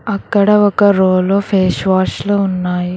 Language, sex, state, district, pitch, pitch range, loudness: Telugu, female, Telangana, Hyderabad, 195 Hz, 185-205 Hz, -13 LUFS